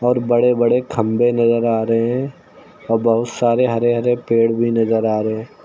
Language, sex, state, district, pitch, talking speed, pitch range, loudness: Hindi, male, Uttar Pradesh, Lucknow, 115 Hz, 200 wpm, 115-120 Hz, -17 LUFS